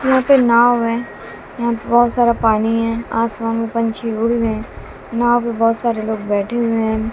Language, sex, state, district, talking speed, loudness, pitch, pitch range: Hindi, female, Bihar, West Champaran, 200 wpm, -17 LUFS, 230 Hz, 225-235 Hz